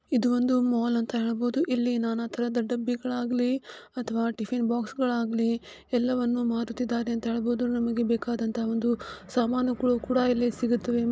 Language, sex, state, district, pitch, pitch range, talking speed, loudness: Kannada, female, Karnataka, Gulbarga, 240 Hz, 230-245 Hz, 135 wpm, -27 LUFS